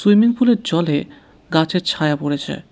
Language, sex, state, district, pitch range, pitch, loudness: Bengali, male, West Bengal, Cooch Behar, 150-210 Hz, 165 Hz, -18 LUFS